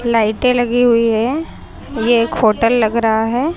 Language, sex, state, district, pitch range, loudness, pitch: Hindi, female, Haryana, Jhajjar, 225-245 Hz, -15 LUFS, 235 Hz